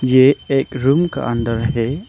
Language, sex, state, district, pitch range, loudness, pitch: Hindi, male, Arunachal Pradesh, Longding, 120-140 Hz, -17 LUFS, 130 Hz